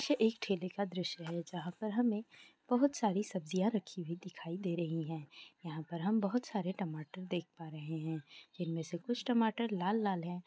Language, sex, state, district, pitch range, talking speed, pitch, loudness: Hindi, female, Maharashtra, Aurangabad, 170-215 Hz, 200 wpm, 185 Hz, -37 LUFS